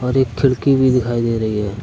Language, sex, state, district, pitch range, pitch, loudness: Hindi, male, Uttar Pradesh, Lucknow, 115-130 Hz, 125 Hz, -17 LUFS